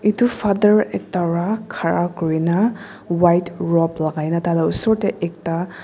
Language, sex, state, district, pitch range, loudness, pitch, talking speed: Nagamese, female, Nagaland, Dimapur, 170-210 Hz, -19 LUFS, 175 Hz, 135 wpm